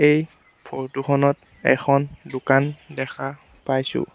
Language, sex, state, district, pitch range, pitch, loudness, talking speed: Assamese, male, Assam, Sonitpur, 135-145 Hz, 140 Hz, -22 LUFS, 100 wpm